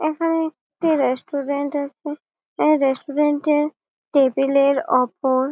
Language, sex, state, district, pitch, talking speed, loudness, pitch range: Bengali, female, West Bengal, Malda, 285 Hz, 110 wpm, -20 LUFS, 275-305 Hz